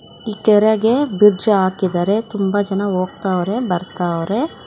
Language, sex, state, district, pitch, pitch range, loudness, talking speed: Kannada, female, Karnataka, Bangalore, 200 Hz, 185-215 Hz, -17 LUFS, 105 wpm